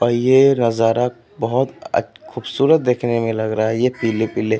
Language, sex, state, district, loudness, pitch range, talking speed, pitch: Hindi, male, Uttar Pradesh, Etah, -18 LUFS, 115-125 Hz, 180 wpm, 120 Hz